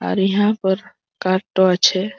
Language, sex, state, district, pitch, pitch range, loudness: Bengali, female, West Bengal, Malda, 190 Hz, 185-205 Hz, -18 LUFS